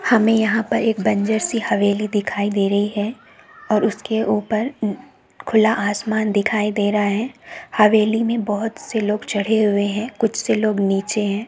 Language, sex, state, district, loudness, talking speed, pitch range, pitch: Hindi, female, Bihar, Saharsa, -19 LUFS, 175 wpm, 205-220 Hz, 215 Hz